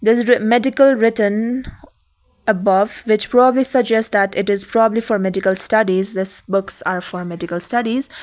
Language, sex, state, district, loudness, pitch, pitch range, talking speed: English, female, Sikkim, Gangtok, -17 LUFS, 220 Hz, 195-240 Hz, 160 wpm